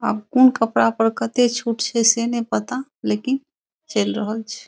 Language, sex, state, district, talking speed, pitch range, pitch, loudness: Maithili, female, Bihar, Saharsa, 180 wpm, 225-255 Hz, 235 Hz, -20 LUFS